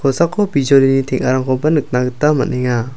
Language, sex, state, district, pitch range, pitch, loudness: Garo, male, Meghalaya, South Garo Hills, 130-150 Hz, 135 Hz, -15 LUFS